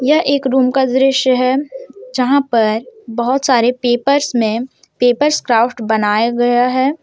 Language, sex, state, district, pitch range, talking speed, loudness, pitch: Hindi, female, Jharkhand, Deoghar, 235-265 Hz, 145 wpm, -14 LUFS, 250 Hz